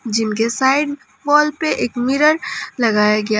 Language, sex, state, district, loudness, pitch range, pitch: Hindi, female, Jharkhand, Palamu, -17 LUFS, 220-295 Hz, 255 Hz